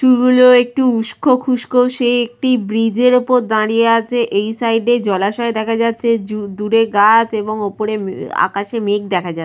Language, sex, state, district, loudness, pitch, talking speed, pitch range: Bengali, female, West Bengal, Purulia, -15 LUFS, 230 Hz, 165 wpm, 215-245 Hz